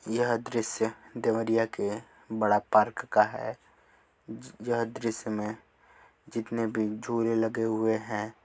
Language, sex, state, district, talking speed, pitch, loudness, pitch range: Hindi, male, Uttar Pradesh, Deoria, 135 wpm, 115 Hz, -29 LUFS, 110-115 Hz